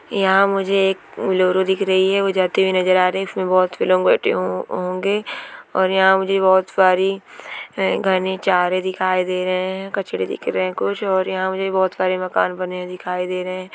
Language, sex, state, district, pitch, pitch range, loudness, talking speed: Hindi, female, Bihar, Gopalganj, 185 Hz, 185-190 Hz, -19 LUFS, 200 wpm